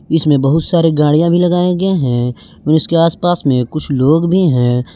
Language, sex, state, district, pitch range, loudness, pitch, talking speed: Hindi, male, Jharkhand, Garhwa, 135-170 Hz, -13 LUFS, 160 Hz, 195 wpm